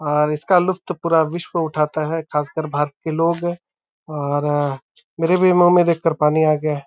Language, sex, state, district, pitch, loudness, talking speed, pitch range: Hindi, male, Uttar Pradesh, Deoria, 160 Hz, -19 LUFS, 185 wpm, 150-175 Hz